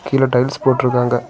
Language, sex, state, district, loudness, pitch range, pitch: Tamil, male, Tamil Nadu, Kanyakumari, -16 LUFS, 125-135 Hz, 125 Hz